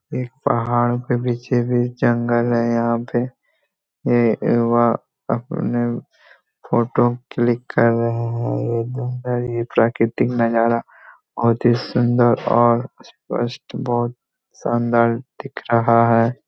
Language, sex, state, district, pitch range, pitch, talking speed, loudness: Hindi, male, Bihar, Jamui, 115-120 Hz, 120 Hz, 110 wpm, -19 LUFS